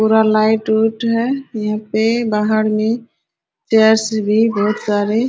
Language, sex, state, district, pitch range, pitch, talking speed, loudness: Hindi, female, Bihar, Araria, 215-225 Hz, 220 Hz, 150 wpm, -16 LUFS